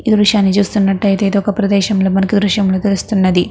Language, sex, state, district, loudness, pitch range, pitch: Telugu, female, Andhra Pradesh, Krishna, -13 LUFS, 195-205 Hz, 200 Hz